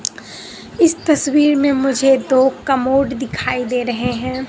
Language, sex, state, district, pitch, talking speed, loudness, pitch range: Hindi, female, Bihar, Katihar, 265 Hz, 135 wpm, -16 LUFS, 255-285 Hz